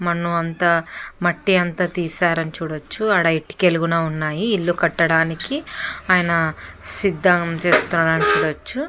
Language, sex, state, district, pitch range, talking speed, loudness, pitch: Telugu, female, Andhra Pradesh, Chittoor, 165-180 Hz, 115 wpm, -19 LUFS, 170 Hz